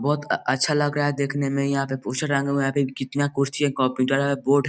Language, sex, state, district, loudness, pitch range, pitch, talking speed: Hindi, male, Bihar, East Champaran, -23 LUFS, 135-145 Hz, 140 Hz, 270 wpm